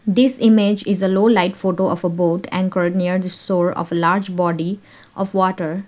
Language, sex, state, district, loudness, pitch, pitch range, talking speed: English, female, Sikkim, Gangtok, -18 LUFS, 185 Hz, 175-200 Hz, 205 wpm